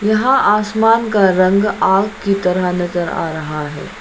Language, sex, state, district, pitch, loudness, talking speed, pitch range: Hindi, female, Arunachal Pradesh, Lower Dibang Valley, 195 Hz, -15 LUFS, 165 wpm, 180-210 Hz